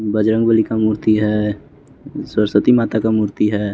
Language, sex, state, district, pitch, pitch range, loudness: Hindi, male, Bihar, West Champaran, 110 Hz, 105-110 Hz, -16 LUFS